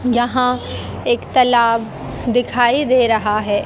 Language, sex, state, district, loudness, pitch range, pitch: Hindi, female, Haryana, Jhajjar, -16 LUFS, 230-250 Hz, 245 Hz